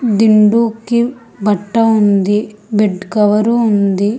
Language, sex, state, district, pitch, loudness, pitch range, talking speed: Telugu, female, Telangana, Hyderabad, 215 Hz, -13 LUFS, 205-230 Hz, 100 wpm